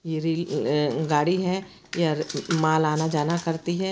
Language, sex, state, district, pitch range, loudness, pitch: Hindi, female, Chhattisgarh, Bastar, 155-175 Hz, -25 LUFS, 160 Hz